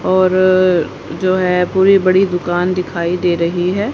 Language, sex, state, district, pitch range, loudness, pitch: Hindi, female, Haryana, Rohtak, 175-185 Hz, -14 LUFS, 180 Hz